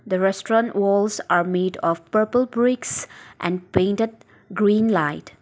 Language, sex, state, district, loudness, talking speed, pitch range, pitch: English, female, Nagaland, Dimapur, -21 LUFS, 135 wpm, 180-225 Hz, 200 Hz